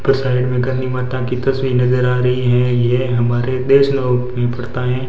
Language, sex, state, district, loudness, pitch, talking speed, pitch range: Hindi, male, Rajasthan, Bikaner, -16 LUFS, 125 Hz, 190 wpm, 125-130 Hz